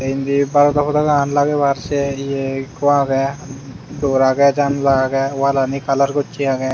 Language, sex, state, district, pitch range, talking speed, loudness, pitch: Chakma, male, Tripura, Unakoti, 135-145 Hz, 150 wpm, -17 LUFS, 140 Hz